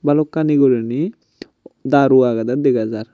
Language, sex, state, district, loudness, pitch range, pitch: Chakma, male, Tripura, Unakoti, -16 LUFS, 115-145 Hz, 130 Hz